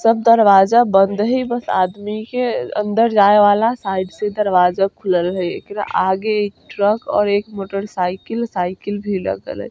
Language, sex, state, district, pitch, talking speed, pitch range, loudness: Bajjika, female, Bihar, Vaishali, 205 Hz, 165 wpm, 195-220 Hz, -17 LUFS